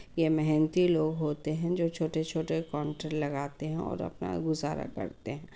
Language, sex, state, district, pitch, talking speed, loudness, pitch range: Hindi, female, Bihar, Muzaffarpur, 155 Hz, 175 wpm, -31 LUFS, 150-160 Hz